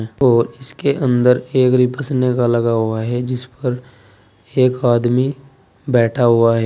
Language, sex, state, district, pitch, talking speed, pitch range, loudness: Hindi, male, Uttar Pradesh, Saharanpur, 125 Hz, 135 wpm, 115-130 Hz, -16 LUFS